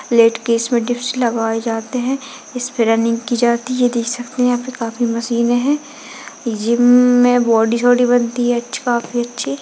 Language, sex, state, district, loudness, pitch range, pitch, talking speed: Hindi, female, Uttarakhand, Uttarkashi, -16 LUFS, 230-250 Hz, 240 Hz, 195 wpm